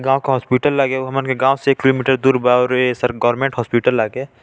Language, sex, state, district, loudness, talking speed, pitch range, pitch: Chhattisgarhi, male, Chhattisgarh, Balrampur, -16 LUFS, 255 wpm, 125-135 Hz, 130 Hz